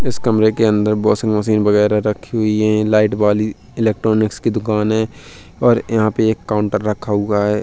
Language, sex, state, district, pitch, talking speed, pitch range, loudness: Hindi, male, Uttar Pradesh, Hamirpur, 105 Hz, 190 wpm, 105-110 Hz, -16 LUFS